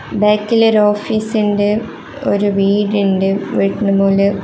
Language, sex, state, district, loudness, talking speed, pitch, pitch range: Malayalam, female, Kerala, Kasaragod, -14 LUFS, 95 wpm, 205 Hz, 195-210 Hz